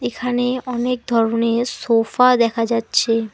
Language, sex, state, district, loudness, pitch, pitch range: Bengali, female, West Bengal, Alipurduar, -18 LUFS, 235 Hz, 230-250 Hz